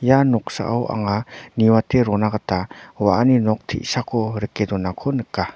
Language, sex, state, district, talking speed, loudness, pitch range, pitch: Garo, male, Meghalaya, North Garo Hills, 130 wpm, -20 LUFS, 105-125 Hz, 110 Hz